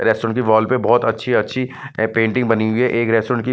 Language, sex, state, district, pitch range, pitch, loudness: Hindi, male, Chandigarh, Chandigarh, 110-125 Hz, 115 Hz, -17 LUFS